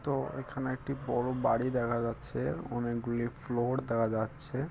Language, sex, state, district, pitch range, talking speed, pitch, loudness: Bengali, male, West Bengal, Kolkata, 120-135 Hz, 140 wpm, 120 Hz, -33 LUFS